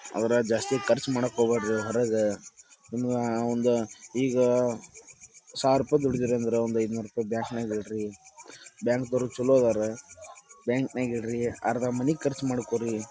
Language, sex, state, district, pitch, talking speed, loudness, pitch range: Kannada, male, Karnataka, Dharwad, 120 Hz, 110 wpm, -27 LUFS, 115-125 Hz